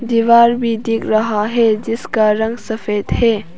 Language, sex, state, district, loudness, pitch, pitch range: Hindi, female, Arunachal Pradesh, Papum Pare, -15 LUFS, 225 Hz, 215-230 Hz